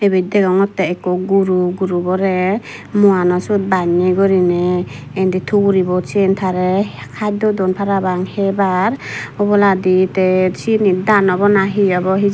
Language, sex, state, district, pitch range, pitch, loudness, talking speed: Chakma, female, Tripura, Dhalai, 185-200 Hz, 190 Hz, -15 LUFS, 120 wpm